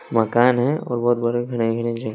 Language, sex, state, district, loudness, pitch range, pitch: Hindi, male, Bihar, West Champaran, -20 LUFS, 115-120 Hz, 120 Hz